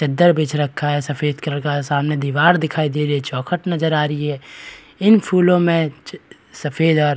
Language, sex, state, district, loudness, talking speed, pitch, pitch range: Hindi, male, Bihar, Kishanganj, -18 LUFS, 200 wpm, 150 Hz, 145-165 Hz